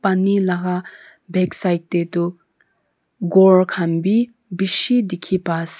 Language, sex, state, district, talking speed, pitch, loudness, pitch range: Nagamese, female, Nagaland, Kohima, 125 wpm, 185 Hz, -18 LUFS, 175-195 Hz